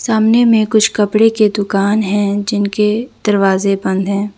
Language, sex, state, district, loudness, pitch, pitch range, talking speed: Hindi, female, Jharkhand, Deoghar, -13 LUFS, 210 Hz, 200-215 Hz, 150 wpm